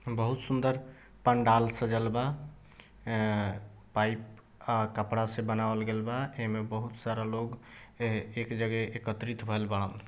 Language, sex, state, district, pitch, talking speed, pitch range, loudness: Bhojpuri, male, Bihar, East Champaran, 115 Hz, 125 wpm, 110-120 Hz, -32 LUFS